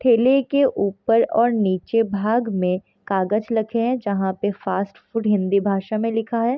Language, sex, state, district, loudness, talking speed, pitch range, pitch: Hindi, female, Bihar, Sitamarhi, -21 LUFS, 180 wpm, 195-230 Hz, 215 Hz